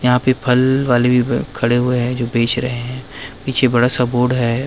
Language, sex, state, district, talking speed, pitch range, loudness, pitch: Hindi, male, Chhattisgarh, Rajnandgaon, 220 wpm, 120-130 Hz, -16 LUFS, 125 Hz